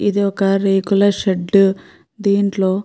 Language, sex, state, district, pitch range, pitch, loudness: Telugu, female, Andhra Pradesh, Krishna, 195-200 Hz, 195 Hz, -16 LUFS